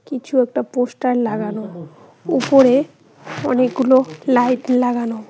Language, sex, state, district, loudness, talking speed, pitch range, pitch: Bengali, female, West Bengal, Cooch Behar, -17 LUFS, 90 wpm, 235-260 Hz, 250 Hz